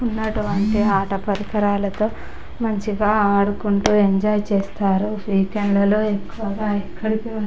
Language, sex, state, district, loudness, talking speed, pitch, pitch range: Telugu, female, Andhra Pradesh, Chittoor, -20 LUFS, 70 wpm, 210 Hz, 200-215 Hz